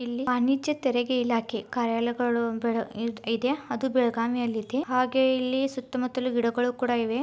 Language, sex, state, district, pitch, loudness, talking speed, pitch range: Kannada, female, Karnataka, Belgaum, 245 Hz, -27 LUFS, 125 wpm, 230-255 Hz